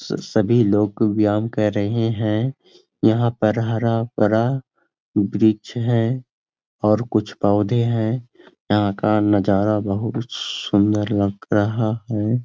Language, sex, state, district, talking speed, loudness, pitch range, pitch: Hindi, male, Jharkhand, Sahebganj, 115 wpm, -20 LUFS, 105-115 Hz, 110 Hz